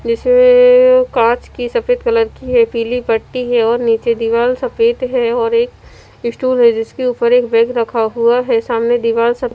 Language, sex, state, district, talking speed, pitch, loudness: Hindi, female, Punjab, Fazilka, 180 wpm, 245 Hz, -13 LUFS